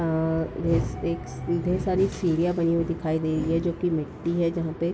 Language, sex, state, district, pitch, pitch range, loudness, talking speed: Hindi, female, Bihar, Darbhanga, 170 Hz, 160-170 Hz, -26 LUFS, 230 wpm